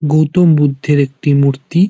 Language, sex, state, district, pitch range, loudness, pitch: Bengali, male, West Bengal, Malda, 140-160 Hz, -13 LUFS, 150 Hz